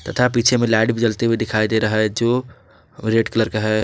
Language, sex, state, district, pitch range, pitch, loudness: Hindi, male, Jharkhand, Garhwa, 110-120 Hz, 110 Hz, -18 LUFS